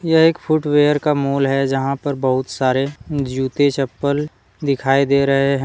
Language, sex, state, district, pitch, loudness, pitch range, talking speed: Hindi, male, Jharkhand, Deoghar, 140 Hz, -18 LUFS, 135-145 Hz, 170 wpm